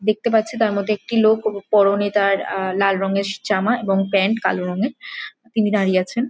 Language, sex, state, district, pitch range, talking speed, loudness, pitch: Bengali, female, West Bengal, Jhargram, 195-220 Hz, 190 wpm, -19 LUFS, 205 Hz